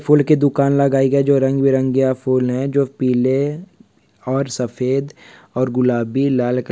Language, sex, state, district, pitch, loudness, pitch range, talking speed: Hindi, male, Andhra Pradesh, Visakhapatnam, 135 Hz, -17 LUFS, 130-140 Hz, 150 wpm